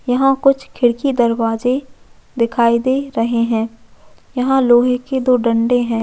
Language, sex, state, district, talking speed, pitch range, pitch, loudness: Hindi, female, Chhattisgarh, Jashpur, 140 wpm, 230-265 Hz, 245 Hz, -16 LUFS